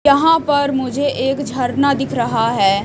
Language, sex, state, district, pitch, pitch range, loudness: Hindi, female, Chhattisgarh, Raipur, 270 Hz, 245-285 Hz, -16 LUFS